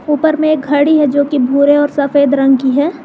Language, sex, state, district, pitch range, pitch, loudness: Hindi, female, Jharkhand, Garhwa, 280-300 Hz, 290 Hz, -12 LUFS